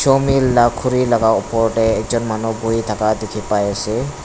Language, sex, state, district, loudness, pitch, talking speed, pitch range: Nagamese, male, Nagaland, Dimapur, -17 LUFS, 115 Hz, 170 wpm, 110-125 Hz